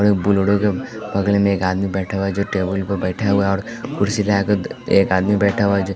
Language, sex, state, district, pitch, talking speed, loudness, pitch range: Hindi, male, Bihar, West Champaran, 100 Hz, 220 wpm, -19 LUFS, 95-100 Hz